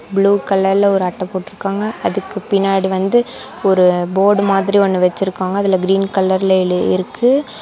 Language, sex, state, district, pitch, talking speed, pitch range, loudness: Tamil, female, Tamil Nadu, Namakkal, 195 Hz, 135 wpm, 190-200 Hz, -15 LUFS